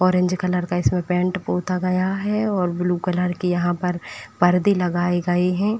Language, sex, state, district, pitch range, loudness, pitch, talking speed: Hindi, female, Uttar Pradesh, Etah, 175-185 Hz, -21 LUFS, 180 Hz, 175 wpm